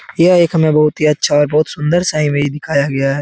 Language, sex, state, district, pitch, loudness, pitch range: Hindi, male, Bihar, Jahanabad, 150 Hz, -13 LUFS, 145-160 Hz